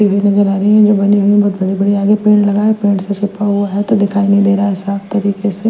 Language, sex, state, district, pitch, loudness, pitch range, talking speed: Hindi, female, Chandigarh, Chandigarh, 200 Hz, -13 LUFS, 200-205 Hz, 295 wpm